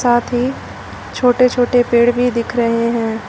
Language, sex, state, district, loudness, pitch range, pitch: Hindi, female, Uttar Pradesh, Lucknow, -15 LUFS, 235-245 Hz, 240 Hz